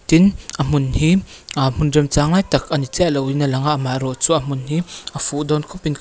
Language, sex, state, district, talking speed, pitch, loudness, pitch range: Mizo, female, Mizoram, Aizawl, 230 wpm, 150 Hz, -18 LUFS, 140-160 Hz